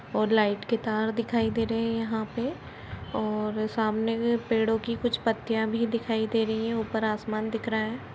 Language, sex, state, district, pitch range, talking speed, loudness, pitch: Hindi, female, Uttar Pradesh, Budaun, 220-230 Hz, 175 wpm, -28 LUFS, 225 Hz